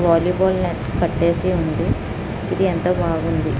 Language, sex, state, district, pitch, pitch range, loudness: Telugu, female, Andhra Pradesh, Guntur, 170 Hz, 165-180 Hz, -20 LUFS